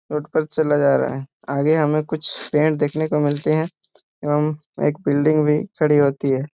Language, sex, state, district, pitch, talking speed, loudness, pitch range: Hindi, male, Jharkhand, Jamtara, 150 Hz, 190 wpm, -20 LUFS, 145-155 Hz